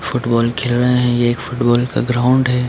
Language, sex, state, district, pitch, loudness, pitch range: Hindi, male, Jharkhand, Sahebganj, 125 Hz, -16 LUFS, 120-125 Hz